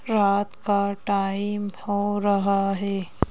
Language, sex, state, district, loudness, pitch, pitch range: Hindi, female, Madhya Pradesh, Bhopal, -24 LUFS, 200 Hz, 200-205 Hz